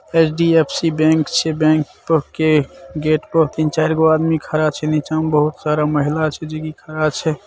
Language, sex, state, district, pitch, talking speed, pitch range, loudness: Maithili, male, Bihar, Saharsa, 155 Hz, 175 wpm, 155-160 Hz, -17 LUFS